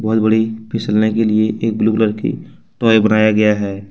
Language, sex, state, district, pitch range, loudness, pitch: Hindi, male, Jharkhand, Ranchi, 105-110 Hz, -15 LUFS, 110 Hz